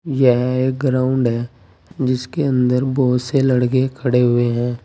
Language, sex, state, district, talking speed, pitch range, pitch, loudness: Hindi, male, Uttar Pradesh, Saharanpur, 150 wpm, 120-130 Hz, 125 Hz, -17 LUFS